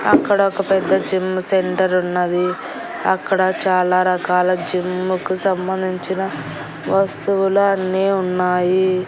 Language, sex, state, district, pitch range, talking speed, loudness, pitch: Telugu, female, Andhra Pradesh, Annamaya, 180-190 Hz, 80 wpm, -18 LUFS, 185 Hz